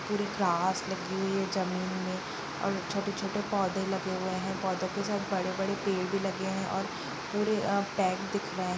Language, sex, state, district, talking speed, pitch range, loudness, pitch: Hindi, female, Bihar, Darbhanga, 190 wpm, 185-200 Hz, -32 LUFS, 195 Hz